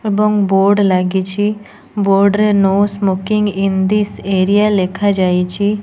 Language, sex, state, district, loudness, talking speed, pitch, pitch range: Odia, female, Odisha, Nuapada, -14 LUFS, 135 wpm, 200 Hz, 190-205 Hz